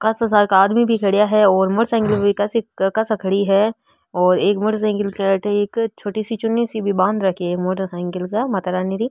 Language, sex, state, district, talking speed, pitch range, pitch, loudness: Rajasthani, female, Rajasthan, Nagaur, 230 wpm, 190-220 Hz, 205 Hz, -18 LUFS